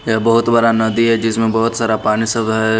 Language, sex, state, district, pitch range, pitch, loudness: Hindi, male, Haryana, Rohtak, 110-115 Hz, 115 Hz, -15 LUFS